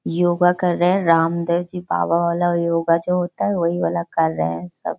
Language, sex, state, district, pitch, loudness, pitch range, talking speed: Hindi, female, Bihar, Jahanabad, 170 Hz, -19 LUFS, 165-175 Hz, 215 wpm